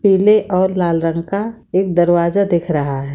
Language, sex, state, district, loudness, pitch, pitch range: Hindi, female, Bihar, Saran, -16 LUFS, 175 Hz, 165-200 Hz